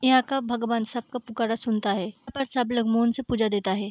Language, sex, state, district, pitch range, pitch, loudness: Hindi, female, Bihar, Begusarai, 220-250 Hz, 235 Hz, -26 LUFS